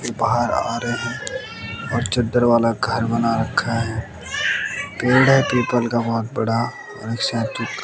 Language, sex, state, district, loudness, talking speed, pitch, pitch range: Hindi, male, Bihar, West Champaran, -20 LUFS, 160 wpm, 115 Hz, 115-120 Hz